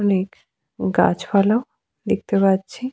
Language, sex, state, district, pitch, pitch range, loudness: Bengali, female, Jharkhand, Sahebganj, 200 Hz, 190-230 Hz, -20 LUFS